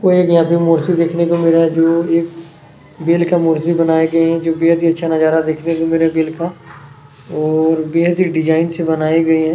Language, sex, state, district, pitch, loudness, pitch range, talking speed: Hindi, male, Chhattisgarh, Kabirdham, 165 Hz, -14 LUFS, 160-170 Hz, 240 wpm